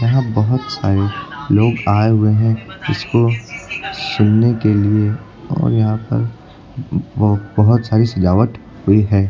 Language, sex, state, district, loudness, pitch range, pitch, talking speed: Hindi, male, Uttar Pradesh, Lucknow, -16 LUFS, 105-115 Hz, 110 Hz, 130 wpm